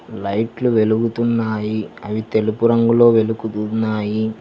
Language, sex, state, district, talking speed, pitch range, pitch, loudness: Telugu, male, Telangana, Hyderabad, 80 wpm, 110-115 Hz, 110 Hz, -18 LUFS